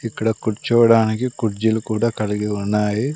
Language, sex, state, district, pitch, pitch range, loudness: Telugu, male, Andhra Pradesh, Sri Satya Sai, 110 Hz, 105-115 Hz, -19 LUFS